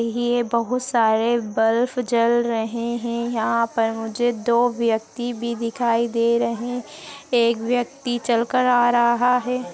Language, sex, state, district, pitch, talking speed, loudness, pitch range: Hindi, female, Chhattisgarh, Jashpur, 235 Hz, 140 wpm, -21 LUFS, 230-245 Hz